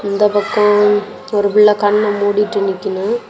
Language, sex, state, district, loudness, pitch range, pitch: Tamil, female, Tamil Nadu, Kanyakumari, -14 LUFS, 205-210 Hz, 205 Hz